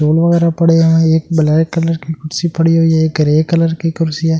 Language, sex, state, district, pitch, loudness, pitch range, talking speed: Hindi, male, Delhi, New Delhi, 165 Hz, -13 LUFS, 160-165 Hz, 230 wpm